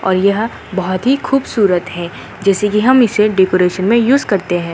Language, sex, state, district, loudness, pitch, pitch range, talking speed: Hindi, female, Uttarakhand, Uttarkashi, -14 LUFS, 200 Hz, 185-230 Hz, 175 wpm